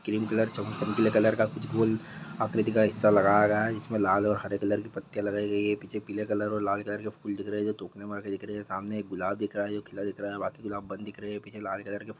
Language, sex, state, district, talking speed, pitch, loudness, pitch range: Hindi, male, Bihar, East Champaran, 310 wpm, 105 Hz, -29 LUFS, 100-110 Hz